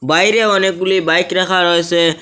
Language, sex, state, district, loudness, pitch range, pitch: Bengali, male, Assam, Hailakandi, -13 LUFS, 170-190 Hz, 180 Hz